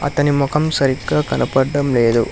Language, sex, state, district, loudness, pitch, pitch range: Telugu, male, Telangana, Hyderabad, -17 LUFS, 135 Hz, 115-145 Hz